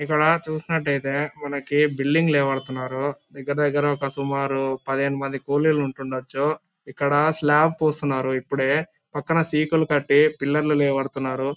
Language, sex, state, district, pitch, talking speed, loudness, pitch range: Telugu, male, Andhra Pradesh, Anantapur, 145 Hz, 120 wpm, -22 LUFS, 135-150 Hz